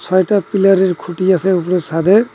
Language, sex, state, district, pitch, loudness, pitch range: Bengali, male, West Bengal, Cooch Behar, 185 Hz, -14 LUFS, 180-195 Hz